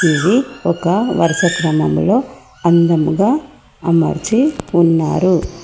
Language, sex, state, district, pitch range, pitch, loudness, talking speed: Telugu, female, Telangana, Komaram Bheem, 165-200 Hz, 170 Hz, -15 LUFS, 75 wpm